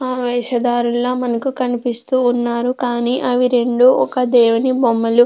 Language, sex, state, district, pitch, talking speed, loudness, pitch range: Telugu, female, Andhra Pradesh, Anantapur, 245 Hz, 125 wpm, -16 LUFS, 240-250 Hz